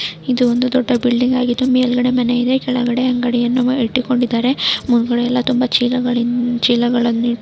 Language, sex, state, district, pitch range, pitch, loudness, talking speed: Kannada, female, Karnataka, Dakshina Kannada, 240-250 Hz, 245 Hz, -16 LUFS, 130 wpm